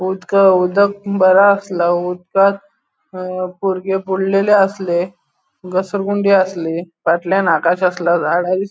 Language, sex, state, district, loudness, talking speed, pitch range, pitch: Konkani, male, Goa, North and South Goa, -15 LUFS, 105 wpm, 180-195 Hz, 185 Hz